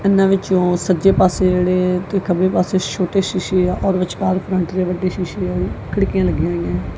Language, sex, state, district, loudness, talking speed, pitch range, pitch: Punjabi, female, Punjab, Kapurthala, -17 LUFS, 180 wpm, 180-190 Hz, 185 Hz